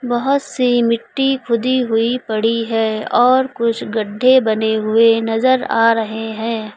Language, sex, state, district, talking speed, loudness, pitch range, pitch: Hindi, female, Uttar Pradesh, Lucknow, 140 wpm, -16 LUFS, 225-255 Hz, 230 Hz